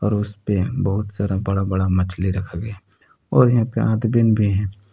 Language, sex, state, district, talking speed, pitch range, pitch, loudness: Hindi, male, Jharkhand, Palamu, 195 wpm, 95-110 Hz, 100 Hz, -20 LUFS